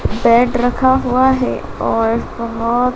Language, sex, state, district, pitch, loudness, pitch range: Hindi, female, Madhya Pradesh, Dhar, 245 Hz, -15 LUFS, 235-255 Hz